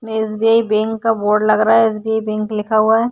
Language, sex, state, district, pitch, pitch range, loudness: Hindi, female, Uttar Pradesh, Hamirpur, 220 Hz, 215-225 Hz, -16 LUFS